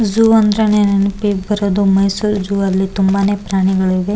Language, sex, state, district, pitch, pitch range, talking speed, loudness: Kannada, male, Karnataka, Bellary, 200 Hz, 195-210 Hz, 130 wpm, -14 LUFS